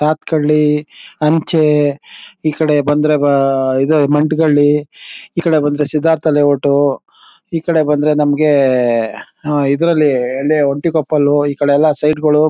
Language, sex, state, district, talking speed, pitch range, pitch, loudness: Kannada, male, Karnataka, Mysore, 130 wpm, 145-155 Hz, 150 Hz, -14 LUFS